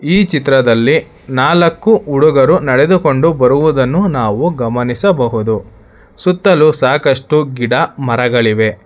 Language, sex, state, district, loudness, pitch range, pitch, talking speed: Kannada, male, Karnataka, Bangalore, -12 LUFS, 120-165 Hz, 135 Hz, 80 wpm